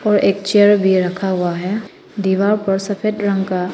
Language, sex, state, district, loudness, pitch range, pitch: Hindi, female, Arunachal Pradesh, Papum Pare, -17 LUFS, 190-205 Hz, 195 Hz